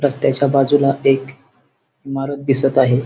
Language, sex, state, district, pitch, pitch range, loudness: Marathi, male, Maharashtra, Sindhudurg, 135 Hz, 135-140 Hz, -16 LUFS